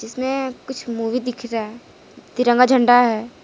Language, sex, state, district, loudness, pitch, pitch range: Hindi, female, Jharkhand, Deoghar, -19 LUFS, 245 Hz, 230-255 Hz